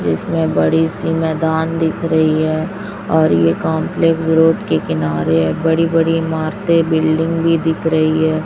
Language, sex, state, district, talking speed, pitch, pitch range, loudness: Hindi, female, Chhattisgarh, Raipur, 155 wpm, 160 Hz, 155-165 Hz, -15 LUFS